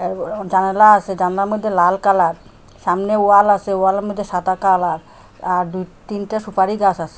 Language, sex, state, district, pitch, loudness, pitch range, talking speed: Bengali, female, Assam, Hailakandi, 195 Hz, -16 LUFS, 185-205 Hz, 175 wpm